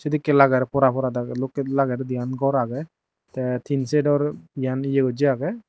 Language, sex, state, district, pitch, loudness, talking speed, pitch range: Chakma, male, Tripura, Dhalai, 135 Hz, -22 LUFS, 190 wpm, 130-145 Hz